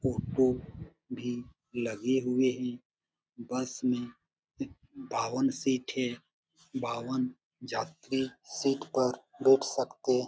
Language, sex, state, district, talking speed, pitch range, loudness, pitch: Hindi, male, Bihar, Jamui, 100 wpm, 125-135 Hz, -32 LUFS, 125 Hz